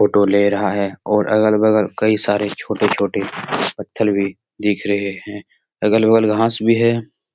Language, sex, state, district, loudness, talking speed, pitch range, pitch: Hindi, male, Bihar, Saran, -17 LUFS, 155 wpm, 100-110 Hz, 105 Hz